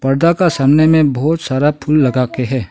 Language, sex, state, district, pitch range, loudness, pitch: Hindi, male, Arunachal Pradesh, Longding, 130-160 Hz, -13 LUFS, 145 Hz